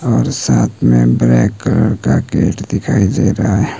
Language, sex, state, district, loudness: Hindi, male, Himachal Pradesh, Shimla, -13 LUFS